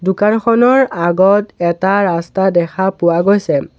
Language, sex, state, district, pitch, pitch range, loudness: Assamese, male, Assam, Sonitpur, 190 Hz, 175-205 Hz, -13 LUFS